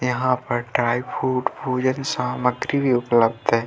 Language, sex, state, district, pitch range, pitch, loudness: Hindi, female, Bihar, Vaishali, 120-130 Hz, 125 Hz, -22 LUFS